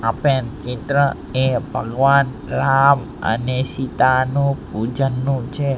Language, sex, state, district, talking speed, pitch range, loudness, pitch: Gujarati, male, Gujarat, Gandhinagar, 95 wpm, 125-140 Hz, -19 LUFS, 130 Hz